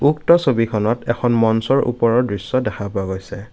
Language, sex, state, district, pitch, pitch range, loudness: Assamese, male, Assam, Kamrup Metropolitan, 115 Hz, 105-130 Hz, -18 LUFS